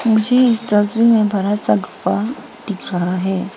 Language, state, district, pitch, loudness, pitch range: Hindi, Arunachal Pradesh, Papum Pare, 205 Hz, -16 LUFS, 190-230 Hz